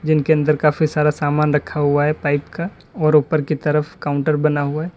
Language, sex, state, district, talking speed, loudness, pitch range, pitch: Hindi, male, Uttar Pradesh, Lalitpur, 215 wpm, -18 LUFS, 145-155 Hz, 150 Hz